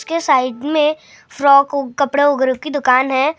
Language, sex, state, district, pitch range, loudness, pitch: Hindi, male, Maharashtra, Gondia, 265-300 Hz, -15 LUFS, 280 Hz